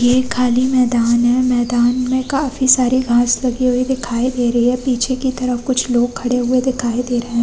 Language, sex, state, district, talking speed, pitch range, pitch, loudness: Hindi, female, Uttar Pradesh, Hamirpur, 210 wpm, 240-255 Hz, 250 Hz, -16 LUFS